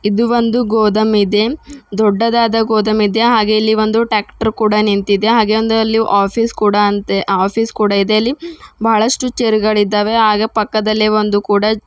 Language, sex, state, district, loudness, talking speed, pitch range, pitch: Kannada, female, Karnataka, Bidar, -13 LUFS, 155 wpm, 210-225 Hz, 215 Hz